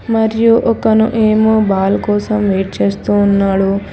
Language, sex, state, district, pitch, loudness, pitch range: Telugu, female, Telangana, Hyderabad, 205 Hz, -13 LUFS, 195-220 Hz